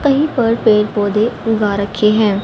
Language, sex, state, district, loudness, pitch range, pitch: Hindi, female, Haryana, Rohtak, -15 LUFS, 205-230 Hz, 215 Hz